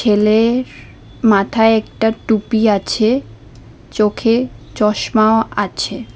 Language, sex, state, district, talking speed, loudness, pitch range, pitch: Bengali, female, Assam, Hailakandi, 80 wpm, -15 LUFS, 210-225 Hz, 220 Hz